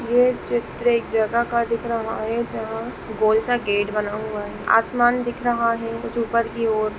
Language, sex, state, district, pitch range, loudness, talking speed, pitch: Hindi, female, Jharkhand, Jamtara, 220-235 Hz, -22 LUFS, 195 wpm, 230 Hz